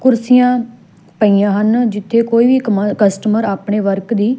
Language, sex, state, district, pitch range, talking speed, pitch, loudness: Punjabi, female, Punjab, Fazilka, 205-235 Hz, 150 wpm, 215 Hz, -14 LUFS